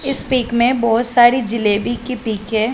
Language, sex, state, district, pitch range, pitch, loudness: Hindi, female, Chhattisgarh, Balrampur, 225-250 Hz, 235 Hz, -15 LUFS